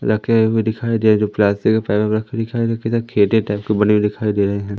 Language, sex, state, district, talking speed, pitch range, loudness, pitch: Hindi, male, Madhya Pradesh, Umaria, 190 wpm, 105-115 Hz, -17 LUFS, 110 Hz